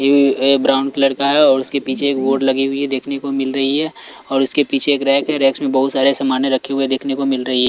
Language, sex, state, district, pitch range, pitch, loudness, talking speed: Hindi, male, Chhattisgarh, Raipur, 135-140 Hz, 135 Hz, -16 LUFS, 280 wpm